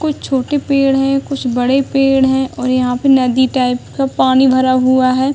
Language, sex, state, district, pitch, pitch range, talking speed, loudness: Hindi, female, Uttar Pradesh, Hamirpur, 265 Hz, 255-275 Hz, 200 wpm, -13 LUFS